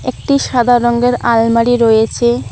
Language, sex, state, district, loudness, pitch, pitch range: Bengali, female, West Bengal, Alipurduar, -12 LUFS, 240 Hz, 230-245 Hz